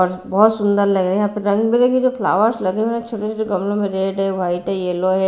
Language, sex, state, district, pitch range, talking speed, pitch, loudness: Hindi, female, Bihar, Patna, 190-220 Hz, 285 wpm, 200 Hz, -18 LUFS